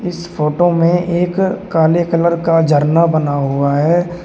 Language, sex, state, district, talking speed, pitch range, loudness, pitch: Hindi, male, Uttar Pradesh, Shamli, 155 wpm, 155-175 Hz, -14 LUFS, 170 Hz